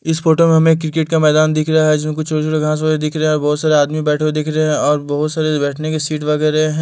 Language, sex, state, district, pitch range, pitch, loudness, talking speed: Hindi, male, Delhi, New Delhi, 150-155 Hz, 155 Hz, -15 LUFS, 310 wpm